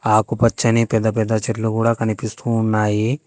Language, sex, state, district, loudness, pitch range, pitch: Telugu, female, Telangana, Hyderabad, -19 LUFS, 110-115 Hz, 110 Hz